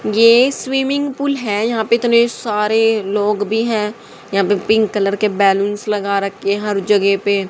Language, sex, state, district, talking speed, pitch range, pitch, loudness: Hindi, female, Haryana, Rohtak, 175 wpm, 200-230 Hz, 210 Hz, -16 LUFS